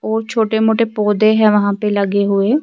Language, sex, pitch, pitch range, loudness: Urdu, female, 215 Hz, 205-220 Hz, -15 LUFS